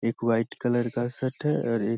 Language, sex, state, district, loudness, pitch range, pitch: Hindi, male, Bihar, Saharsa, -27 LUFS, 115-130 Hz, 120 Hz